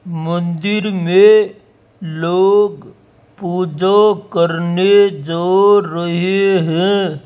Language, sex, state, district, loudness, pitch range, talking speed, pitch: Hindi, male, Rajasthan, Jaipur, -14 LUFS, 170-200 Hz, 65 wpm, 185 Hz